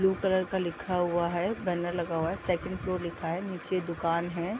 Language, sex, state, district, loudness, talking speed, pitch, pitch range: Hindi, female, Bihar, Gopalganj, -31 LUFS, 275 wpm, 175 Hz, 170-185 Hz